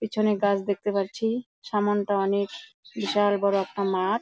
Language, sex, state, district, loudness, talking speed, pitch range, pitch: Bengali, female, West Bengal, Jalpaiguri, -26 LUFS, 170 wpm, 200-215 Hz, 205 Hz